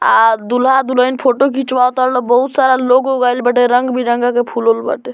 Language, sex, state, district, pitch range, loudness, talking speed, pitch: Bhojpuri, male, Bihar, Muzaffarpur, 245-260 Hz, -13 LUFS, 165 wpm, 250 Hz